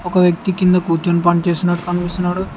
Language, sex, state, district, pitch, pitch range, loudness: Telugu, male, Telangana, Hyderabad, 175 Hz, 175-180 Hz, -16 LUFS